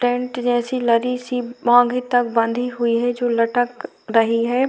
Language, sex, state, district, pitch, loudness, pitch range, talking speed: Hindi, female, Uttar Pradesh, Hamirpur, 245 Hz, -19 LUFS, 235-245 Hz, 140 wpm